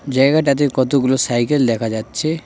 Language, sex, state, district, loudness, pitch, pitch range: Bengali, male, West Bengal, Cooch Behar, -16 LUFS, 135 Hz, 120-145 Hz